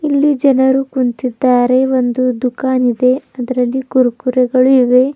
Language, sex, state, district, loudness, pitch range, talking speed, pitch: Kannada, female, Karnataka, Bidar, -13 LUFS, 250-265 Hz, 105 wpm, 255 Hz